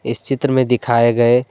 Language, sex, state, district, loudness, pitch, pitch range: Hindi, male, Jharkhand, Deoghar, -16 LUFS, 120 Hz, 120-130 Hz